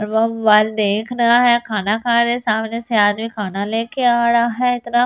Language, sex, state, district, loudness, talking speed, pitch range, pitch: Hindi, female, Delhi, New Delhi, -17 LUFS, 215 wpm, 215-235 Hz, 225 Hz